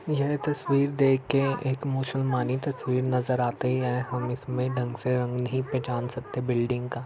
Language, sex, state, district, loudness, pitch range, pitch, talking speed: Hindi, male, Uttar Pradesh, Etah, -27 LUFS, 125-135 Hz, 130 Hz, 170 wpm